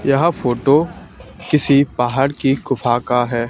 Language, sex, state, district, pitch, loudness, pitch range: Hindi, male, Haryana, Charkhi Dadri, 135 Hz, -17 LUFS, 120-140 Hz